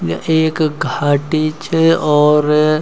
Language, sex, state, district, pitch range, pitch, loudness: Garhwali, male, Uttarakhand, Uttarkashi, 150-160 Hz, 155 Hz, -14 LUFS